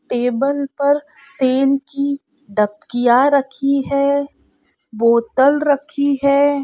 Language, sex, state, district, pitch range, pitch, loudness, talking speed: Hindi, female, Chhattisgarh, Korba, 260-285 Hz, 275 Hz, -17 LUFS, 90 wpm